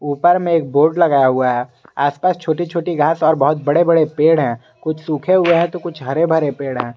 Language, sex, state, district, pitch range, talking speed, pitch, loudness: Hindi, male, Jharkhand, Garhwa, 140-170 Hz, 235 wpm, 155 Hz, -16 LUFS